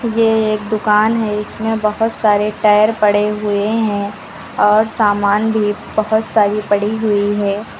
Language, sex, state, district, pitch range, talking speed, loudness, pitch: Hindi, female, Uttar Pradesh, Lucknow, 205-220 Hz, 145 wpm, -15 LUFS, 210 Hz